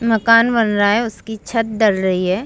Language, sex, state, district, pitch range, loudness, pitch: Hindi, female, Jharkhand, Jamtara, 205-230 Hz, -16 LUFS, 220 Hz